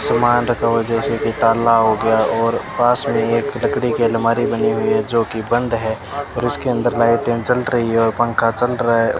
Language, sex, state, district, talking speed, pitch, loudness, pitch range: Hindi, male, Rajasthan, Bikaner, 230 wpm, 115 Hz, -17 LUFS, 115-120 Hz